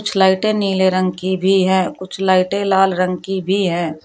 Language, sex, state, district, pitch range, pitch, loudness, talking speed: Hindi, female, Uttar Pradesh, Shamli, 185-195 Hz, 190 Hz, -16 LUFS, 205 wpm